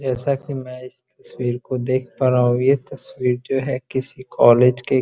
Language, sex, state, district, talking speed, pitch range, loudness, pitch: Hindi, male, Uttar Pradesh, Muzaffarnagar, 205 wpm, 125-135 Hz, -20 LUFS, 130 Hz